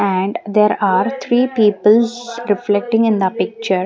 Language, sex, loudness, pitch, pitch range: English, female, -16 LUFS, 210 Hz, 200-235 Hz